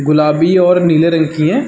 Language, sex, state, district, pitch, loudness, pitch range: Hindi, male, Chhattisgarh, Sarguja, 165 Hz, -11 LUFS, 155-180 Hz